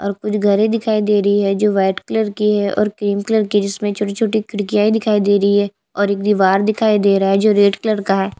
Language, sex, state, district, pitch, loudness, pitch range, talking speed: Hindi, female, Chhattisgarh, Jashpur, 205 Hz, -16 LUFS, 200-210 Hz, 250 wpm